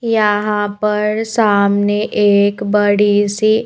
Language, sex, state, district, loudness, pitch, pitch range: Hindi, female, Madhya Pradesh, Bhopal, -14 LUFS, 210 Hz, 205-215 Hz